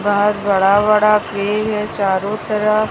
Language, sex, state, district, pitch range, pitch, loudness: Hindi, female, Odisha, Sambalpur, 205-215 Hz, 210 Hz, -16 LUFS